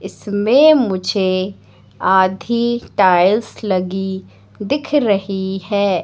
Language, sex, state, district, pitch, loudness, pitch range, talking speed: Hindi, female, Madhya Pradesh, Katni, 195 Hz, -16 LUFS, 185-215 Hz, 80 wpm